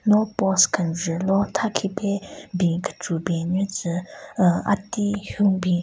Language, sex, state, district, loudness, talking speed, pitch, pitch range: Rengma, female, Nagaland, Kohima, -23 LUFS, 155 wpm, 190 Hz, 175-205 Hz